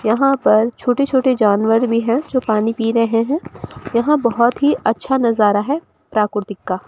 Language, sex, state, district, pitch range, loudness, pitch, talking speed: Hindi, female, Rajasthan, Bikaner, 215-265 Hz, -17 LUFS, 230 Hz, 175 wpm